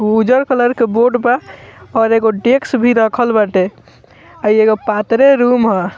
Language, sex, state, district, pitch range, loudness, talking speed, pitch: Bhojpuri, male, Bihar, Muzaffarpur, 215-245 Hz, -13 LUFS, 150 wpm, 230 Hz